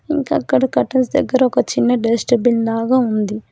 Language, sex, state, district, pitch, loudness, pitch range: Telugu, female, Telangana, Hyderabad, 245 Hz, -16 LUFS, 230-260 Hz